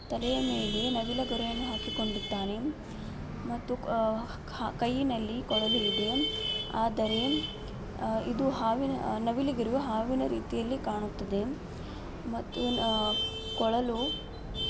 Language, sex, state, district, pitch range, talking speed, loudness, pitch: Kannada, female, Karnataka, Belgaum, 220-255 Hz, 65 wpm, -31 LUFS, 230 Hz